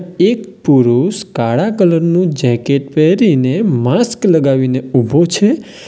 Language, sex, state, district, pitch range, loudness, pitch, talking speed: Gujarati, male, Gujarat, Valsad, 130-200 Hz, -13 LUFS, 165 Hz, 110 wpm